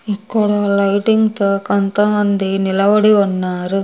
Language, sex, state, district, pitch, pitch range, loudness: Telugu, female, Andhra Pradesh, Sri Satya Sai, 200 Hz, 195-210 Hz, -15 LUFS